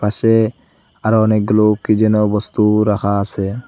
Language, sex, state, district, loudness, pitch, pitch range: Bengali, male, Assam, Hailakandi, -15 LUFS, 105 Hz, 105-110 Hz